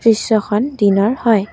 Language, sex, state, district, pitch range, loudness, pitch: Assamese, female, Assam, Kamrup Metropolitan, 205-230 Hz, -15 LUFS, 220 Hz